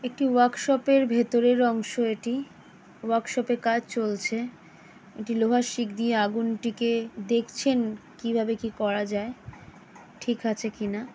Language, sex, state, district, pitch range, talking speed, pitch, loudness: Bengali, female, West Bengal, Jalpaiguri, 225-245 Hz, 125 wpm, 230 Hz, -26 LUFS